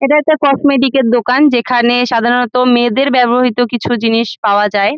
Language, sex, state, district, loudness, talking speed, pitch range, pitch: Bengali, female, West Bengal, Jalpaiguri, -12 LUFS, 155 wpm, 240-270 Hz, 245 Hz